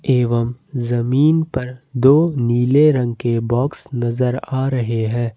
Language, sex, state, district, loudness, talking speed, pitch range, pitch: Hindi, male, Jharkhand, Ranchi, -18 LUFS, 135 wpm, 120-135 Hz, 125 Hz